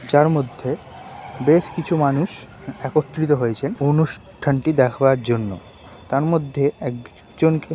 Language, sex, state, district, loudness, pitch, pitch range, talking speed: Bengali, male, West Bengal, Purulia, -20 LUFS, 140 Hz, 125-155 Hz, 95 wpm